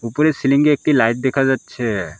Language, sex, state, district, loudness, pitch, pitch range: Bengali, male, West Bengal, Alipurduar, -17 LUFS, 135 Hz, 115-145 Hz